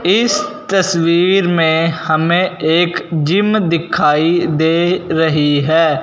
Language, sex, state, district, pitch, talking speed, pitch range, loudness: Hindi, male, Punjab, Fazilka, 170 Hz, 100 wpm, 160-185 Hz, -14 LUFS